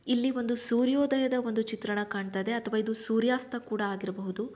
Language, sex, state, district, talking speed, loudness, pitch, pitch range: Kannada, female, Karnataka, Shimoga, 130 wpm, -30 LUFS, 225 Hz, 205-250 Hz